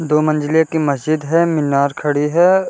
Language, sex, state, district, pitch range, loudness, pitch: Hindi, male, Bihar, Gopalganj, 145-160 Hz, -16 LUFS, 155 Hz